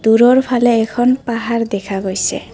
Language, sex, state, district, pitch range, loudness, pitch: Assamese, female, Assam, Kamrup Metropolitan, 220-245 Hz, -15 LUFS, 230 Hz